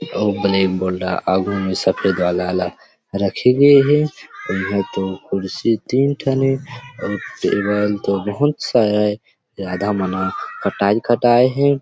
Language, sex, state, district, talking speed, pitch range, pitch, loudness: Chhattisgarhi, male, Chhattisgarh, Rajnandgaon, 150 wpm, 95-125 Hz, 100 Hz, -18 LUFS